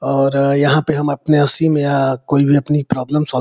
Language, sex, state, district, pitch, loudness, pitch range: Hindi, male, Uttar Pradesh, Gorakhpur, 145 Hz, -15 LUFS, 140-150 Hz